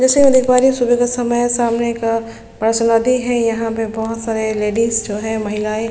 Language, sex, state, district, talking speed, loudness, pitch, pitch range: Hindi, female, Chhattisgarh, Sukma, 255 wpm, -16 LUFS, 230 Hz, 225-245 Hz